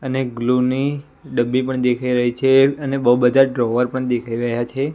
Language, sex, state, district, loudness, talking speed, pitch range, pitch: Gujarati, male, Gujarat, Gandhinagar, -18 LUFS, 195 wpm, 120-135 Hz, 125 Hz